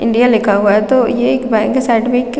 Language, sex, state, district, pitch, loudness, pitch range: Hindi, female, Chhattisgarh, Raigarh, 240 Hz, -13 LUFS, 225-250 Hz